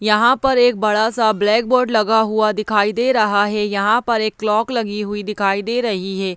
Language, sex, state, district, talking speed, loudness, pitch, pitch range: Hindi, female, Bihar, Jahanabad, 215 wpm, -17 LUFS, 215 Hz, 205-230 Hz